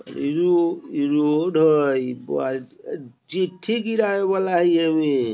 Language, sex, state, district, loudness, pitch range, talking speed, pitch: Bajjika, male, Bihar, Vaishali, -21 LUFS, 145-225 Hz, 125 wpm, 175 Hz